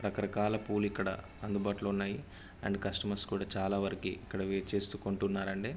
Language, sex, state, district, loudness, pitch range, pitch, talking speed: Telugu, male, Andhra Pradesh, Anantapur, -35 LUFS, 95-100 Hz, 100 Hz, 145 wpm